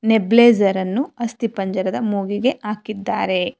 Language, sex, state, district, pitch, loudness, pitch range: Kannada, female, Karnataka, Bangalore, 215 Hz, -19 LUFS, 195-235 Hz